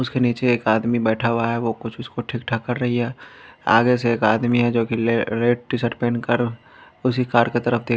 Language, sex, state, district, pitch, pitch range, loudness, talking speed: Hindi, male, Bihar, Patna, 120 Hz, 115-120 Hz, -21 LUFS, 220 wpm